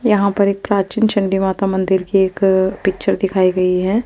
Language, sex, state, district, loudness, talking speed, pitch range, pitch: Hindi, female, Chandigarh, Chandigarh, -16 LUFS, 205 wpm, 190-200 Hz, 195 Hz